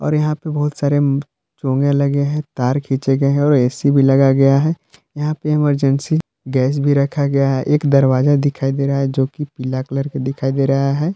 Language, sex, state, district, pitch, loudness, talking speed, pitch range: Hindi, male, Jharkhand, Palamu, 140 Hz, -17 LUFS, 215 wpm, 135-145 Hz